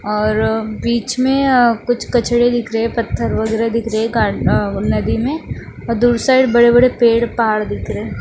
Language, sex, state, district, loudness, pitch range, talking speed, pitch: Hindi, female, Bihar, West Champaran, -15 LUFS, 225-245 Hz, 205 wpm, 235 Hz